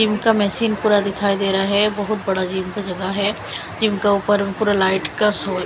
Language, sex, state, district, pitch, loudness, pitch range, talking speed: Hindi, female, Chandigarh, Chandigarh, 200 Hz, -19 LUFS, 195-210 Hz, 225 wpm